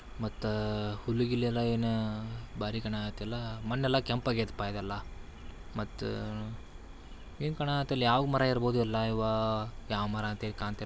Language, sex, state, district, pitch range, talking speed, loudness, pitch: Kannada, male, Karnataka, Belgaum, 105-120 Hz, 115 wpm, -33 LUFS, 110 Hz